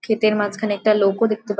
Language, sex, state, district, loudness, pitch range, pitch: Bengali, female, West Bengal, Jhargram, -19 LUFS, 205-215 Hz, 215 Hz